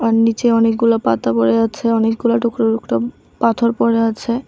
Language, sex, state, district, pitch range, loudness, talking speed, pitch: Bengali, female, Tripura, West Tripura, 225-230 Hz, -16 LUFS, 160 wpm, 230 Hz